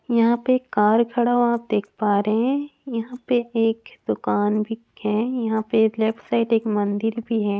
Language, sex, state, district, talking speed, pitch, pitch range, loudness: Hindi, female, Rajasthan, Churu, 205 wpm, 225 Hz, 215-240 Hz, -22 LUFS